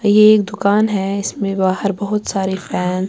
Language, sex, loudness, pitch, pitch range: Urdu, female, -16 LUFS, 200 Hz, 190-210 Hz